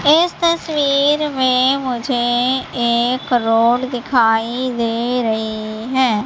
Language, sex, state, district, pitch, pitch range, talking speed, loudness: Hindi, female, Madhya Pradesh, Katni, 245 Hz, 235-265 Hz, 95 wpm, -17 LUFS